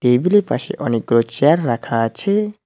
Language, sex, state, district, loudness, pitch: Bengali, male, West Bengal, Cooch Behar, -17 LUFS, 130 Hz